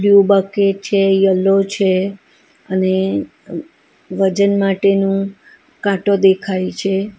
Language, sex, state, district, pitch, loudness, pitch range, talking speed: Gujarati, female, Gujarat, Valsad, 195 Hz, -15 LUFS, 190-200 Hz, 90 wpm